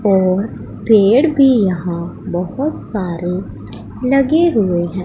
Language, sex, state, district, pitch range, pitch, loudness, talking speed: Hindi, female, Punjab, Pathankot, 180-260 Hz, 200 Hz, -15 LUFS, 105 wpm